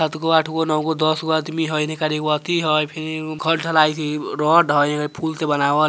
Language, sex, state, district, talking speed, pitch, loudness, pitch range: Bajjika, female, Bihar, Vaishali, 265 wpm, 155 Hz, -19 LUFS, 150-160 Hz